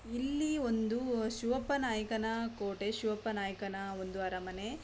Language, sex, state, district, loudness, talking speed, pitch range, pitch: Kannada, female, Karnataka, Belgaum, -36 LUFS, 110 wpm, 200-240 Hz, 220 Hz